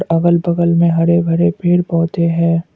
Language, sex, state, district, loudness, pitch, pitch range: Hindi, male, Assam, Kamrup Metropolitan, -14 LUFS, 170 Hz, 165-170 Hz